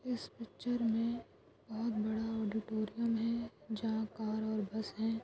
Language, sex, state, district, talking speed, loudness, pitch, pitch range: Hindi, female, Goa, North and South Goa, 135 wpm, -38 LUFS, 225 Hz, 220-230 Hz